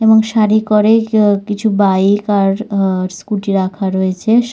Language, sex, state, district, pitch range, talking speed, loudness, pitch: Bengali, female, West Bengal, Dakshin Dinajpur, 195-215 Hz, 160 wpm, -14 LUFS, 205 Hz